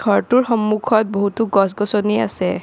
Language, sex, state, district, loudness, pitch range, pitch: Assamese, female, Assam, Kamrup Metropolitan, -17 LUFS, 205-225 Hz, 215 Hz